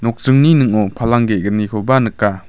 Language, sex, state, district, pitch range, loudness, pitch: Garo, male, Meghalaya, West Garo Hills, 105-130 Hz, -14 LUFS, 115 Hz